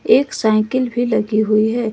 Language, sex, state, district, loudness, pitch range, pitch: Hindi, female, Jharkhand, Ranchi, -17 LUFS, 215-245 Hz, 220 Hz